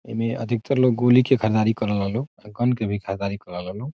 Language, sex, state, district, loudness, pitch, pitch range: Bhojpuri, male, Bihar, Saran, -22 LUFS, 115 Hz, 105-125 Hz